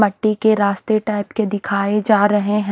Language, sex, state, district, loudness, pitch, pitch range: Hindi, female, Haryana, Charkhi Dadri, -17 LUFS, 210 Hz, 205-215 Hz